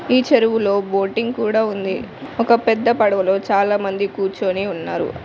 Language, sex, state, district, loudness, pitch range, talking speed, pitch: Telugu, female, Telangana, Mahabubabad, -18 LUFS, 195-230 Hz, 125 wpm, 205 Hz